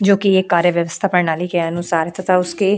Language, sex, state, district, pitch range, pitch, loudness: Hindi, female, Goa, North and South Goa, 170-195 Hz, 180 Hz, -17 LUFS